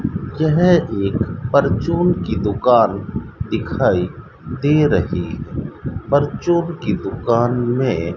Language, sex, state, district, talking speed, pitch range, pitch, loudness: Hindi, male, Rajasthan, Bikaner, 95 wpm, 110-160 Hz, 125 Hz, -18 LUFS